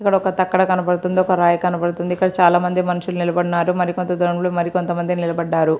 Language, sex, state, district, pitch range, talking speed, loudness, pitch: Telugu, female, Andhra Pradesh, Srikakulam, 175-180 Hz, 195 wpm, -18 LUFS, 180 Hz